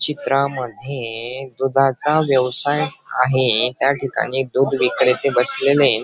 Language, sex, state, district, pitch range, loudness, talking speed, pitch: Marathi, male, Maharashtra, Dhule, 125-140 Hz, -17 LUFS, 80 wpm, 135 Hz